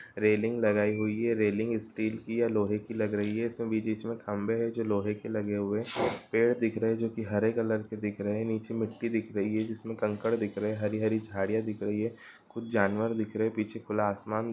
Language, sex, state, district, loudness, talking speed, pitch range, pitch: Hindi, male, Bihar, Gopalganj, -31 LUFS, 245 wpm, 105-115 Hz, 110 Hz